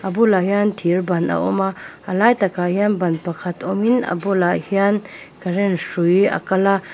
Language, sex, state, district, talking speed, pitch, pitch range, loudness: Mizo, female, Mizoram, Aizawl, 190 wpm, 190 Hz, 180-200 Hz, -19 LUFS